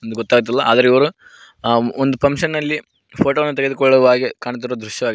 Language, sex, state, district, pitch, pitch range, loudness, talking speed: Kannada, male, Karnataka, Koppal, 130 Hz, 120-140 Hz, -16 LUFS, 165 wpm